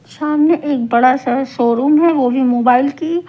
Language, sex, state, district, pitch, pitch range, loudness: Hindi, female, Punjab, Pathankot, 270 Hz, 250-300 Hz, -14 LUFS